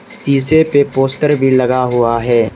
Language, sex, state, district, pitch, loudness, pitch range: Hindi, male, Arunachal Pradesh, Lower Dibang Valley, 135 Hz, -13 LUFS, 125-145 Hz